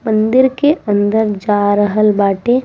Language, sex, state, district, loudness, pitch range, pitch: Bhojpuri, female, Bihar, East Champaran, -13 LUFS, 205-240 Hz, 215 Hz